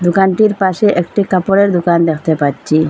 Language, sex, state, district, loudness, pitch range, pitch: Bengali, female, Assam, Hailakandi, -13 LUFS, 165-195 Hz, 185 Hz